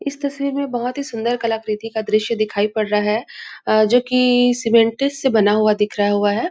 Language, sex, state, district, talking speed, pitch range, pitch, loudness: Hindi, female, Chhattisgarh, Raigarh, 220 wpm, 215-250 Hz, 225 Hz, -18 LUFS